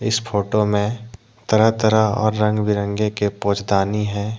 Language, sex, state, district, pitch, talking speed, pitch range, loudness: Hindi, male, Jharkhand, Deoghar, 105 Hz, 150 wpm, 105-110 Hz, -19 LUFS